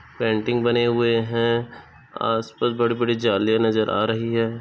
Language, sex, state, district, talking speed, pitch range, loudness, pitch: Hindi, male, Chhattisgarh, Bastar, 155 wpm, 115-120 Hz, -22 LUFS, 115 Hz